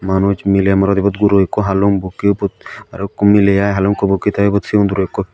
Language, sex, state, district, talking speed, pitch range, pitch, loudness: Chakma, male, Tripura, Dhalai, 225 wpm, 95-100 Hz, 100 Hz, -14 LUFS